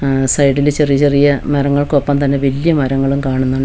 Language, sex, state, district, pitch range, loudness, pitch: Malayalam, female, Kerala, Wayanad, 135-145 Hz, -14 LUFS, 140 Hz